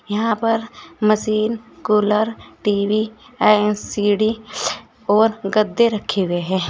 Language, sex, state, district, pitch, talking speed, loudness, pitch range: Hindi, female, Uttar Pradesh, Saharanpur, 215 Hz, 100 wpm, -19 LUFS, 205-220 Hz